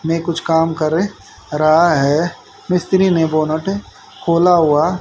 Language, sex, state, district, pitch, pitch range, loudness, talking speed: Hindi, male, Haryana, Jhajjar, 165 Hz, 155-180 Hz, -16 LUFS, 130 wpm